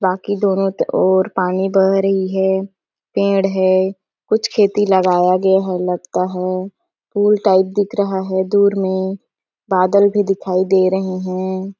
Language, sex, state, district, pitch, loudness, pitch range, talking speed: Hindi, female, Chhattisgarh, Sarguja, 190 Hz, -16 LUFS, 185-195 Hz, 150 wpm